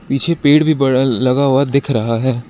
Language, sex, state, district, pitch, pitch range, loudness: Hindi, male, Arunachal Pradesh, Lower Dibang Valley, 135 Hz, 130-140 Hz, -14 LUFS